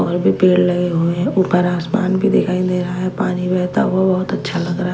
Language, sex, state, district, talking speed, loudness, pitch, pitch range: Hindi, female, Chhattisgarh, Raipur, 245 wpm, -17 LUFS, 180 Hz, 175-185 Hz